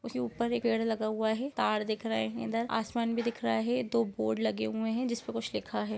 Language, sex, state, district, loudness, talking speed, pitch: Hindi, female, Bihar, Sitamarhi, -32 LUFS, 260 wpm, 215 Hz